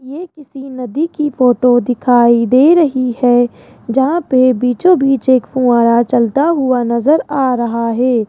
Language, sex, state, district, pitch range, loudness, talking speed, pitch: Hindi, female, Rajasthan, Jaipur, 240-280 Hz, -12 LUFS, 150 wpm, 255 Hz